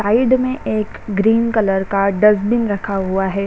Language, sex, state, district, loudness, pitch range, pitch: Hindi, female, Bihar, Saran, -17 LUFS, 195-225 Hz, 210 Hz